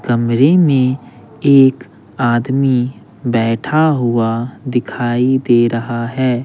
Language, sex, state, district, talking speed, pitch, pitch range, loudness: Hindi, male, Bihar, Patna, 95 wpm, 125 Hz, 120-130 Hz, -14 LUFS